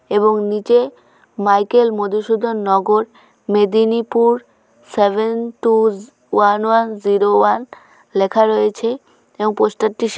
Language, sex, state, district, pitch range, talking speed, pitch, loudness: Bengali, female, West Bengal, Jhargram, 205-230 Hz, 100 wpm, 215 Hz, -16 LUFS